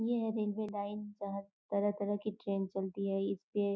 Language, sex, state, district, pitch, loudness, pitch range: Hindi, female, Uttar Pradesh, Gorakhpur, 205 Hz, -37 LUFS, 200-210 Hz